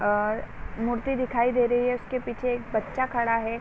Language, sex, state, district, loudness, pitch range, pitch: Hindi, female, Uttar Pradesh, Varanasi, -27 LUFS, 225-250 Hz, 240 Hz